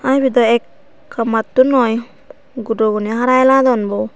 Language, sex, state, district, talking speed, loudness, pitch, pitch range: Chakma, female, Tripura, Dhalai, 145 wpm, -15 LUFS, 235 Hz, 225-260 Hz